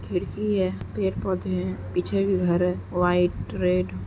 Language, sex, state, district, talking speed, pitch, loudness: Hindi, female, Uttar Pradesh, Etah, 175 wpm, 175 Hz, -25 LUFS